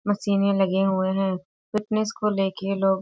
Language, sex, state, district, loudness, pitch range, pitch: Hindi, female, Bihar, Sitamarhi, -24 LUFS, 190-205 Hz, 195 Hz